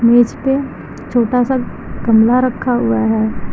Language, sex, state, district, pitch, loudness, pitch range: Hindi, female, Uttar Pradesh, Lucknow, 240 Hz, -15 LUFS, 225-255 Hz